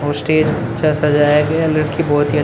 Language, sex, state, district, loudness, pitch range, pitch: Hindi, male, Uttar Pradesh, Muzaffarnagar, -15 LUFS, 145-155 Hz, 150 Hz